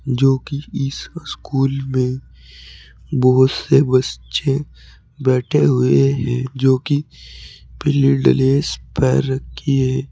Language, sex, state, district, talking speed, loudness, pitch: Hindi, male, Uttar Pradesh, Saharanpur, 105 wpm, -17 LUFS, 130 Hz